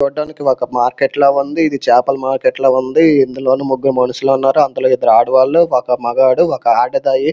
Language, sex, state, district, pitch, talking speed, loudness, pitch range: Telugu, male, Andhra Pradesh, Srikakulam, 135 Hz, 170 wpm, -13 LUFS, 130-140 Hz